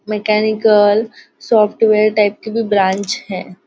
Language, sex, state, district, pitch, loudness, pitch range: Hindi, female, Maharashtra, Nagpur, 215 Hz, -14 LUFS, 205-220 Hz